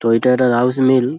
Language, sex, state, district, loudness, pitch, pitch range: Bengali, male, West Bengal, Dakshin Dinajpur, -15 LUFS, 125 Hz, 120-130 Hz